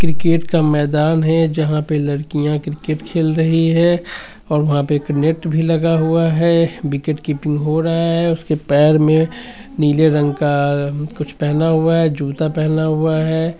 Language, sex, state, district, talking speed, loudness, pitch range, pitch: Hindi, male, Bihar, Sitamarhi, 170 wpm, -16 LUFS, 150-165 Hz, 155 Hz